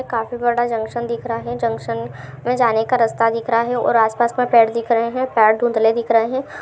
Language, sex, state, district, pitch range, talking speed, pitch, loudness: Hindi, female, Chhattisgarh, Balrampur, 225-240 Hz, 245 wpm, 230 Hz, -18 LUFS